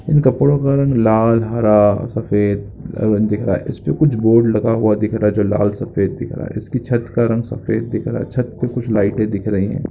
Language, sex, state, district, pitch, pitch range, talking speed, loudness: Hindi, male, Chhattisgarh, Jashpur, 115 Hz, 105-125 Hz, 250 wpm, -17 LUFS